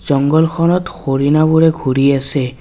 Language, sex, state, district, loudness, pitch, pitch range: Assamese, male, Assam, Kamrup Metropolitan, -14 LUFS, 145 Hz, 135-160 Hz